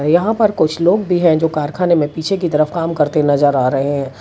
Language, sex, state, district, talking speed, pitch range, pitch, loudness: Hindi, female, Gujarat, Valsad, 255 wpm, 145-175 Hz, 160 Hz, -15 LUFS